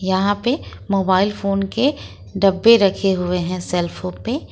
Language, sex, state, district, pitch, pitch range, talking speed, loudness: Hindi, female, Jharkhand, Ranchi, 195 Hz, 185-205 Hz, 160 wpm, -18 LUFS